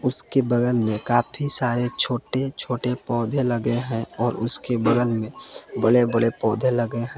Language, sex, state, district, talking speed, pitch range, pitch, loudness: Hindi, male, Jharkhand, Palamu, 160 wpm, 115-125 Hz, 120 Hz, -20 LUFS